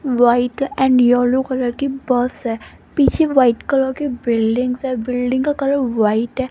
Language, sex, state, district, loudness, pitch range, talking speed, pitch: Hindi, female, Rajasthan, Jaipur, -17 LUFS, 245-270 Hz, 165 wpm, 255 Hz